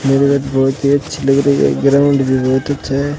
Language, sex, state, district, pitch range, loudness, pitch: Hindi, male, Rajasthan, Bikaner, 135-140 Hz, -14 LUFS, 140 Hz